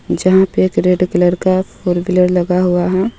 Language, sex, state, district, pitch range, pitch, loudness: Hindi, female, Jharkhand, Ranchi, 180-185 Hz, 180 Hz, -14 LUFS